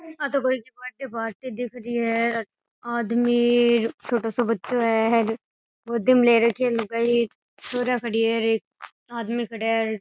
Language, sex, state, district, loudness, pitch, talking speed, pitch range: Rajasthani, female, Rajasthan, Nagaur, -23 LUFS, 235 Hz, 175 wpm, 225-245 Hz